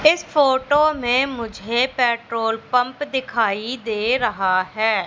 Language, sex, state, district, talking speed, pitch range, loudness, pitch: Hindi, female, Madhya Pradesh, Katni, 120 wpm, 220-265 Hz, -20 LUFS, 245 Hz